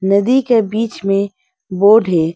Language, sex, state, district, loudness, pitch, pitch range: Hindi, female, Arunachal Pradesh, Lower Dibang Valley, -14 LUFS, 200 Hz, 195-225 Hz